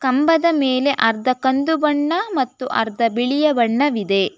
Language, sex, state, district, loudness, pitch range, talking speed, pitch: Kannada, female, Karnataka, Bangalore, -18 LUFS, 235-295 Hz, 125 wpm, 260 Hz